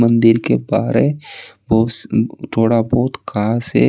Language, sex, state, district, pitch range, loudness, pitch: Hindi, male, Uttar Pradesh, Saharanpur, 110-120 Hz, -16 LUFS, 115 Hz